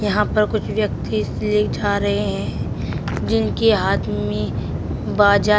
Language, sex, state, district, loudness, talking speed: Hindi, female, Uttar Pradesh, Shamli, -20 LUFS, 130 wpm